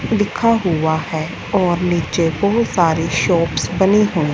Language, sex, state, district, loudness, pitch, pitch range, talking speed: Hindi, female, Punjab, Fazilka, -17 LUFS, 175 Hz, 165-200 Hz, 140 wpm